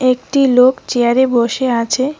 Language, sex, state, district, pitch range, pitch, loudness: Bengali, female, West Bengal, Cooch Behar, 240-260 Hz, 255 Hz, -14 LUFS